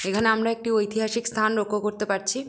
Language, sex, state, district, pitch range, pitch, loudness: Bengali, female, West Bengal, Jalpaiguri, 210-230 Hz, 220 Hz, -24 LUFS